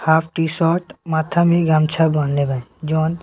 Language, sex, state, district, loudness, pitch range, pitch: Bhojpuri, male, Bihar, Muzaffarpur, -18 LUFS, 155-165 Hz, 160 Hz